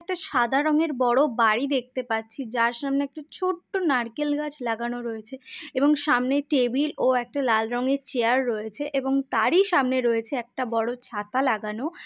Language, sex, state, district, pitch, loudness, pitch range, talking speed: Bengali, female, West Bengal, Jhargram, 265 Hz, -25 LUFS, 240-290 Hz, 170 wpm